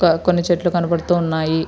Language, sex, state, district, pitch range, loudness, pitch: Telugu, female, Andhra Pradesh, Srikakulam, 160-175 Hz, -18 LUFS, 170 Hz